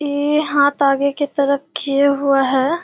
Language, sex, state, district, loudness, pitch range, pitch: Hindi, female, Bihar, Kishanganj, -17 LUFS, 275-290 Hz, 280 Hz